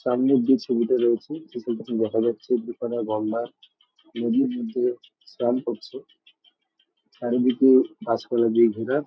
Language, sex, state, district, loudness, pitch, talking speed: Bengali, male, West Bengal, Jalpaiguri, -23 LUFS, 125 Hz, 120 wpm